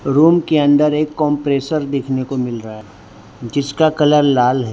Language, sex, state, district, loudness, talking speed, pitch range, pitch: Hindi, male, Gujarat, Valsad, -15 LUFS, 180 wpm, 125-150 Hz, 140 Hz